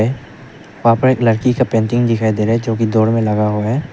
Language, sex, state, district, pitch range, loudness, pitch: Hindi, male, Arunachal Pradesh, Papum Pare, 110-120 Hz, -15 LUFS, 115 Hz